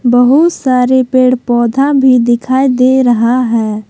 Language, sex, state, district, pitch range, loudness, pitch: Hindi, female, Jharkhand, Palamu, 240-260 Hz, -10 LUFS, 255 Hz